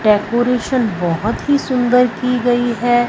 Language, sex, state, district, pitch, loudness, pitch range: Hindi, female, Punjab, Fazilka, 240 Hz, -16 LUFS, 225-250 Hz